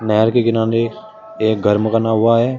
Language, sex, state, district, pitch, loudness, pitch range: Hindi, male, Uttar Pradesh, Shamli, 115 Hz, -16 LUFS, 110-120 Hz